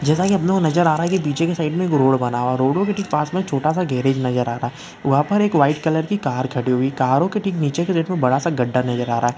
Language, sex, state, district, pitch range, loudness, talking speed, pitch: Hindi, male, Uttarakhand, Uttarkashi, 130-175 Hz, -19 LUFS, 340 wpm, 150 Hz